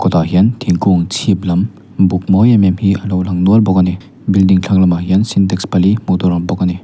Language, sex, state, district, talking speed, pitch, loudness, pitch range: Mizo, male, Mizoram, Aizawl, 265 wpm, 95 Hz, -13 LUFS, 90-100 Hz